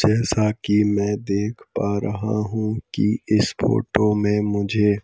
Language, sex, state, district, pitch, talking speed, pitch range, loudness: Hindi, male, Madhya Pradesh, Bhopal, 105 Hz, 145 wpm, 105-110 Hz, -21 LUFS